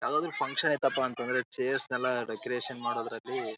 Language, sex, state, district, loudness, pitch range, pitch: Kannada, male, Karnataka, Raichur, -31 LUFS, 120-130 Hz, 125 Hz